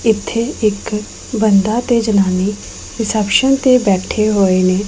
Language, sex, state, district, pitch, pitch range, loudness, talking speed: Punjabi, female, Punjab, Pathankot, 215 Hz, 200-230 Hz, -15 LUFS, 125 wpm